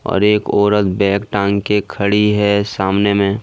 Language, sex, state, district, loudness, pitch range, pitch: Hindi, male, Jharkhand, Ranchi, -15 LUFS, 100-105 Hz, 100 Hz